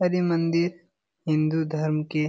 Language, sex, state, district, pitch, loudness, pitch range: Hindi, male, Bihar, Jamui, 160 Hz, -25 LUFS, 155-175 Hz